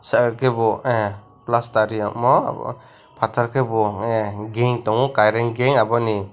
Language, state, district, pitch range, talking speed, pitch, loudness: Kokborok, Tripura, West Tripura, 110-120 Hz, 130 wpm, 115 Hz, -20 LUFS